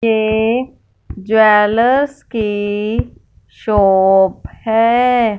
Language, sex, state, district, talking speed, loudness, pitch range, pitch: Hindi, female, Punjab, Fazilka, 55 wpm, -14 LUFS, 200-230 Hz, 215 Hz